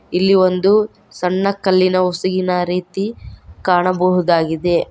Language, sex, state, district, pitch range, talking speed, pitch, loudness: Kannada, female, Karnataka, Koppal, 180-190 Hz, 85 wpm, 185 Hz, -16 LUFS